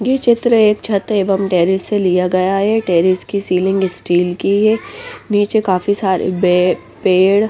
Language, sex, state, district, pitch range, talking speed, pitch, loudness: Hindi, female, Bihar, West Champaran, 185-210 Hz, 170 wpm, 195 Hz, -15 LUFS